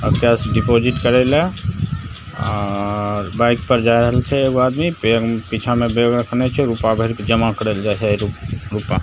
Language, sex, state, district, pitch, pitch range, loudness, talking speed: Maithili, male, Bihar, Begusarai, 115 Hz, 110-125 Hz, -17 LUFS, 190 wpm